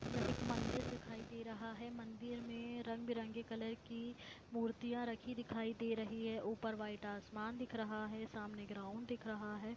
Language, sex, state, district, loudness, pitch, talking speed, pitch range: Hindi, female, Jharkhand, Jamtara, -45 LUFS, 225 Hz, 185 wpm, 220-235 Hz